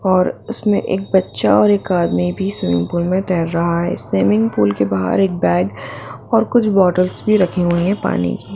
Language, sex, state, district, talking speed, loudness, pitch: Hindi, female, Bihar, Gopalganj, 205 wpm, -16 LUFS, 175 Hz